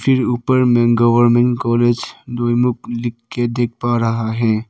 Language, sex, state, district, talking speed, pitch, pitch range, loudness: Hindi, male, Arunachal Pradesh, Papum Pare, 155 wpm, 120 Hz, 115-120 Hz, -16 LUFS